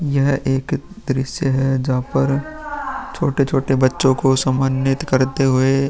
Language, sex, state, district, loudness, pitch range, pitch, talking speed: Hindi, male, Uttar Pradesh, Muzaffarnagar, -18 LUFS, 130-145 Hz, 135 Hz, 140 wpm